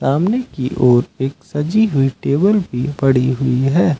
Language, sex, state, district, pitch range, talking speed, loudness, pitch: Hindi, male, Uttar Pradesh, Lucknow, 130-175 Hz, 165 wpm, -16 LUFS, 135 Hz